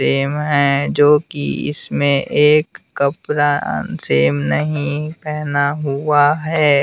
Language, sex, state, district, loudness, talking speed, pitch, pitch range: Hindi, male, Bihar, West Champaran, -17 LUFS, 105 wpm, 145 Hz, 140-150 Hz